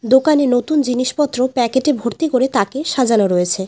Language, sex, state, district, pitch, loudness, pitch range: Bengali, female, West Bengal, Alipurduar, 255 Hz, -16 LUFS, 235-280 Hz